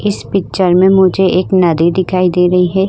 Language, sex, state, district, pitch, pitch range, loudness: Hindi, female, Uttar Pradesh, Hamirpur, 185 Hz, 180-190 Hz, -11 LUFS